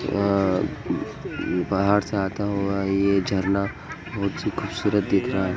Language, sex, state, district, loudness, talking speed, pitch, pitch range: Hindi, male, Uttar Pradesh, Muzaffarnagar, -24 LUFS, 150 wpm, 100 Hz, 95-100 Hz